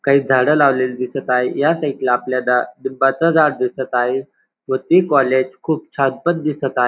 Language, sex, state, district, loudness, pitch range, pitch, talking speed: Marathi, male, Maharashtra, Dhule, -17 LUFS, 125-145 Hz, 130 Hz, 175 wpm